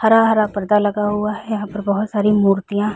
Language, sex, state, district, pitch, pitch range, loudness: Hindi, female, Chhattisgarh, Raigarh, 210 Hz, 205-215 Hz, -18 LUFS